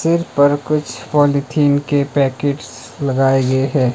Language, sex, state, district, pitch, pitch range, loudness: Hindi, male, Himachal Pradesh, Shimla, 140 Hz, 135-145 Hz, -16 LUFS